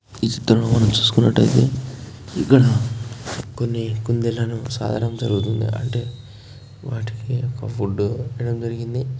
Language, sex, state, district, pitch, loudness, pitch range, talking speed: Telugu, male, Karnataka, Gulbarga, 115 Hz, -21 LUFS, 110-120 Hz, 90 wpm